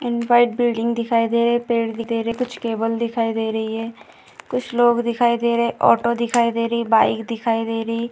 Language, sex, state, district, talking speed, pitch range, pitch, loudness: Hindi, female, Chhattisgarh, Balrampur, 250 wpm, 230-235 Hz, 235 Hz, -20 LUFS